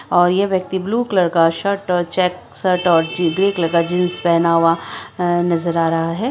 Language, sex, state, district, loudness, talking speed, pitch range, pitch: Hindi, female, Bihar, Araria, -17 LUFS, 190 wpm, 170-185 Hz, 175 Hz